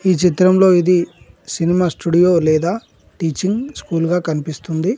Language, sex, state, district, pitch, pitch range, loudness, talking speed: Telugu, male, Telangana, Mahabubabad, 175 Hz, 165-185 Hz, -16 LUFS, 120 wpm